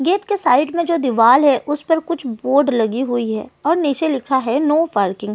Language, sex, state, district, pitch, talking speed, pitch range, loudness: Hindi, female, Delhi, New Delhi, 280 Hz, 235 wpm, 240-320 Hz, -17 LUFS